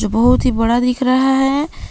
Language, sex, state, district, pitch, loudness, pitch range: Hindi, female, Jharkhand, Palamu, 250 Hz, -15 LUFS, 235-265 Hz